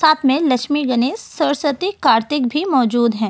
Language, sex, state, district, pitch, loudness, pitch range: Hindi, female, Delhi, New Delhi, 280 Hz, -17 LUFS, 245-310 Hz